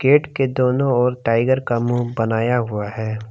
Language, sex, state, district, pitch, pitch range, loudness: Hindi, male, Jharkhand, Palamu, 120 Hz, 115-130 Hz, -19 LUFS